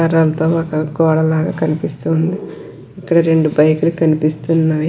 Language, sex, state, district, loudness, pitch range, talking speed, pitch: Telugu, female, Andhra Pradesh, Krishna, -15 LUFS, 155-165 Hz, 125 wpm, 160 Hz